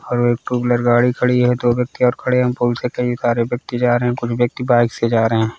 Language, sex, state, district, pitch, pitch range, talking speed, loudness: Hindi, male, Bihar, Gaya, 120 Hz, 120-125 Hz, 290 wpm, -17 LUFS